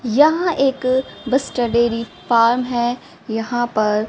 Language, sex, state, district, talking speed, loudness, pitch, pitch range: Hindi, female, Haryana, Rohtak, 115 wpm, -18 LUFS, 240 Hz, 230-260 Hz